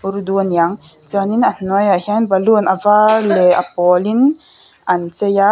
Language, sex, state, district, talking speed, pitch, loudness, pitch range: Mizo, female, Mizoram, Aizawl, 175 wpm, 200 Hz, -14 LUFS, 180-215 Hz